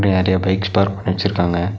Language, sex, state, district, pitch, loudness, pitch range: Tamil, male, Tamil Nadu, Nilgiris, 95 Hz, -18 LUFS, 95-100 Hz